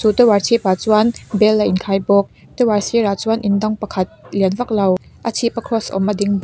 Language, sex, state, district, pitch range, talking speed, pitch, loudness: Mizo, female, Mizoram, Aizawl, 195-225 Hz, 235 wpm, 210 Hz, -17 LUFS